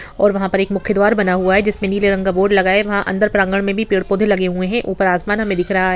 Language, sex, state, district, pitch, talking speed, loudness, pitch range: Hindi, female, Bihar, Sitamarhi, 195 Hz, 330 wpm, -16 LUFS, 190-205 Hz